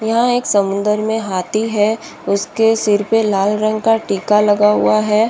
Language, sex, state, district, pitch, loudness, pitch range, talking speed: Hindi, female, Bihar, Saharsa, 215 Hz, -15 LUFS, 205-225 Hz, 180 wpm